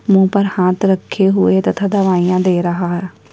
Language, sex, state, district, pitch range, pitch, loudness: Hindi, female, Uttar Pradesh, Jyotiba Phule Nagar, 175-195 Hz, 185 Hz, -15 LUFS